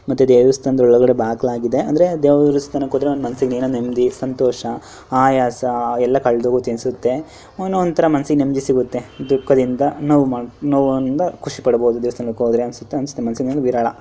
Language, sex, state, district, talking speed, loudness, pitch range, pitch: Kannada, male, Karnataka, Dharwad, 130 wpm, -17 LUFS, 120-140 Hz, 130 Hz